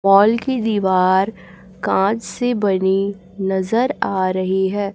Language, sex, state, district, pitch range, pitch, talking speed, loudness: Hindi, female, Chhattisgarh, Raipur, 190-220 Hz, 195 Hz, 120 wpm, -18 LUFS